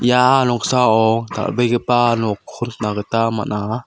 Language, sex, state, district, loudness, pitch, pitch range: Garo, male, Meghalaya, South Garo Hills, -17 LUFS, 115 Hz, 110-120 Hz